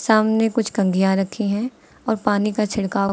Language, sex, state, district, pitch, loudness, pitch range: Hindi, female, Uttar Pradesh, Lucknow, 210 Hz, -20 LUFS, 200-225 Hz